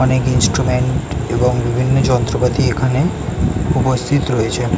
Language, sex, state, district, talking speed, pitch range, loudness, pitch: Bengali, male, West Bengal, North 24 Parganas, 100 wpm, 120-130 Hz, -16 LUFS, 125 Hz